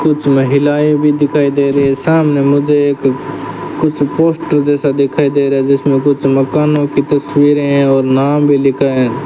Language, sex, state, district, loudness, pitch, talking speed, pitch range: Hindi, male, Rajasthan, Bikaner, -12 LUFS, 140 Hz, 175 wpm, 140-145 Hz